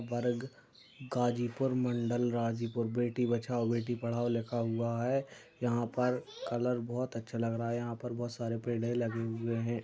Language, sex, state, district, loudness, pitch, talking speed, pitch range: Hindi, male, Uttar Pradesh, Ghazipur, -34 LUFS, 120 Hz, 165 wpm, 115-120 Hz